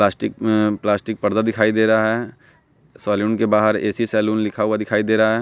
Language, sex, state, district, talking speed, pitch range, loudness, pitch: Hindi, male, Bihar, West Champaran, 210 wpm, 105-110 Hz, -19 LUFS, 110 Hz